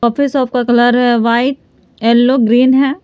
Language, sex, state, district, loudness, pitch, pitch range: Hindi, female, Jharkhand, Palamu, -12 LUFS, 245 Hz, 240-265 Hz